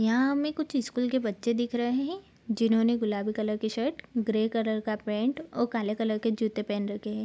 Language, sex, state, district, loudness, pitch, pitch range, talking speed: Hindi, female, Bihar, East Champaran, -29 LUFS, 225 Hz, 215-250 Hz, 215 wpm